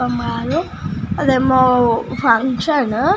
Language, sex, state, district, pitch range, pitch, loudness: Telugu, female, Telangana, Nalgonda, 240-265 Hz, 255 Hz, -16 LUFS